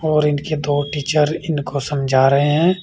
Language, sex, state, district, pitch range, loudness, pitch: Hindi, male, Uttar Pradesh, Saharanpur, 145-155 Hz, -18 LUFS, 150 Hz